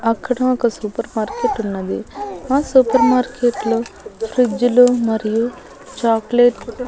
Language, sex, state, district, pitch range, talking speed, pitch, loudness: Telugu, female, Andhra Pradesh, Annamaya, 230-255 Hz, 115 wpm, 245 Hz, -17 LUFS